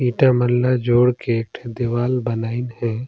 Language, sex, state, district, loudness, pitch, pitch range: Surgujia, male, Chhattisgarh, Sarguja, -19 LUFS, 120 Hz, 115-125 Hz